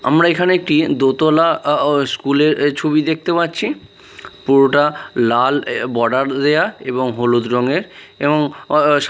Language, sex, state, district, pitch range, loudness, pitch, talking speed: Bengali, male, Bihar, Katihar, 130-155 Hz, -16 LUFS, 145 Hz, 110 wpm